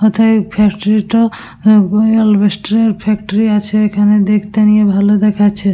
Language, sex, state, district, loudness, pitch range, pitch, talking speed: Bengali, female, West Bengal, Dakshin Dinajpur, -12 LUFS, 205-215 Hz, 210 Hz, 115 wpm